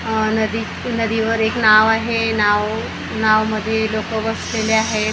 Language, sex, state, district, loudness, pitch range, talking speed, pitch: Marathi, female, Maharashtra, Gondia, -17 LUFS, 215-225 Hz, 140 wpm, 220 Hz